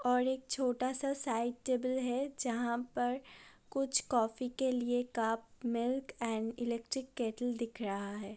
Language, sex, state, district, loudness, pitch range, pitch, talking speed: Hindi, female, Uttar Pradesh, Budaun, -36 LUFS, 235-260 Hz, 245 Hz, 150 wpm